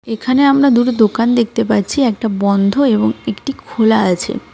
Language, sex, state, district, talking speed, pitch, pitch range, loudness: Bengali, female, West Bengal, Cooch Behar, 170 wpm, 225 Hz, 210-255 Hz, -14 LUFS